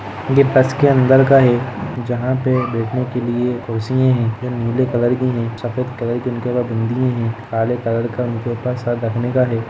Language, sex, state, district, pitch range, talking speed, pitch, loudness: Hindi, male, Jharkhand, Jamtara, 115-130 Hz, 205 wpm, 120 Hz, -18 LUFS